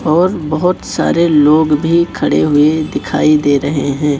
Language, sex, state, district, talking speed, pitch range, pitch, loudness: Hindi, male, Chhattisgarh, Raipur, 160 wpm, 145-165 Hz, 155 Hz, -13 LUFS